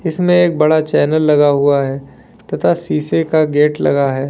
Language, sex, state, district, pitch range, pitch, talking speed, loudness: Hindi, male, Uttar Pradesh, Lalitpur, 140-160 Hz, 150 Hz, 180 wpm, -14 LUFS